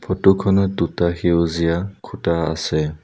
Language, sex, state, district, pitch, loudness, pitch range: Assamese, male, Assam, Sonitpur, 85 Hz, -19 LUFS, 85-95 Hz